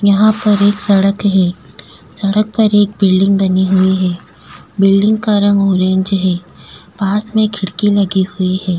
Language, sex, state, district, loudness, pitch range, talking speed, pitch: Hindi, female, Goa, North and South Goa, -13 LUFS, 190-205 Hz, 155 wpm, 195 Hz